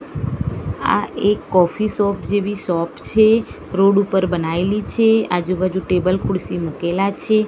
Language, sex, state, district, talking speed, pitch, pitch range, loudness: Gujarati, female, Gujarat, Gandhinagar, 130 wpm, 195 Hz, 180-210 Hz, -18 LUFS